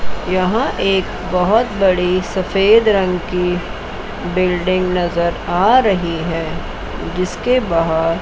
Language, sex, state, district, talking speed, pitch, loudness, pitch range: Hindi, female, Chandigarh, Chandigarh, 100 wpm, 185 Hz, -16 LUFS, 175-195 Hz